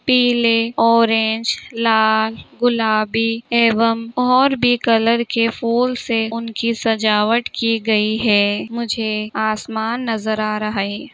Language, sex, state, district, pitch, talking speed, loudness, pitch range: Hindi, female, Jharkhand, Sahebganj, 230 Hz, 125 wpm, -17 LUFS, 220-235 Hz